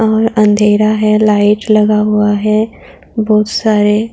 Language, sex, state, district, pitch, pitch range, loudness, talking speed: Hindi, female, Uttar Pradesh, Budaun, 215 Hz, 210-215 Hz, -11 LUFS, 130 wpm